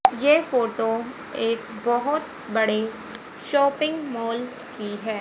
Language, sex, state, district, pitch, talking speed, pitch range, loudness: Hindi, female, Haryana, Rohtak, 240 Hz, 105 wpm, 225-280 Hz, -24 LUFS